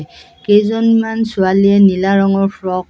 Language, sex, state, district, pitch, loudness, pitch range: Assamese, female, Assam, Kamrup Metropolitan, 195 Hz, -13 LUFS, 190-215 Hz